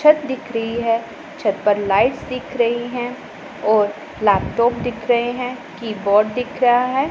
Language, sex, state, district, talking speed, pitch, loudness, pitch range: Hindi, female, Punjab, Pathankot, 160 wpm, 240 Hz, -19 LUFS, 220-255 Hz